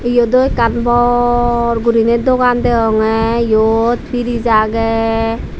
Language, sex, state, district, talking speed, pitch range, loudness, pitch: Chakma, female, Tripura, Dhalai, 95 wpm, 225-240 Hz, -13 LUFS, 235 Hz